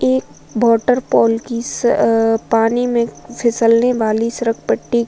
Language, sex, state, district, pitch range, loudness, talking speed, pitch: Hindi, female, Uttar Pradesh, Varanasi, 225-235 Hz, -16 LUFS, 140 wpm, 230 Hz